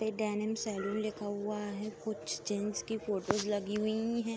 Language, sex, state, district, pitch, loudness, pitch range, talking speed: Hindi, female, Uttar Pradesh, Jalaun, 210 Hz, -35 LUFS, 205-220 Hz, 180 wpm